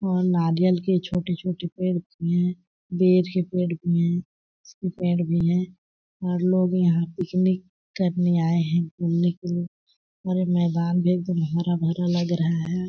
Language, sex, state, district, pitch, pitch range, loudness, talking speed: Hindi, female, Chhattisgarh, Balrampur, 175 Hz, 170-180 Hz, -24 LUFS, 165 wpm